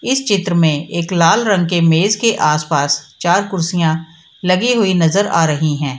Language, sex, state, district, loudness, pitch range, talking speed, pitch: Hindi, female, Bihar, Samastipur, -15 LUFS, 160-195 Hz, 180 wpm, 170 Hz